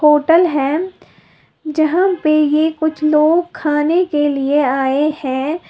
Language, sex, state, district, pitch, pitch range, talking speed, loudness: Hindi, female, Uttar Pradesh, Lalitpur, 305 Hz, 295-325 Hz, 125 wpm, -15 LUFS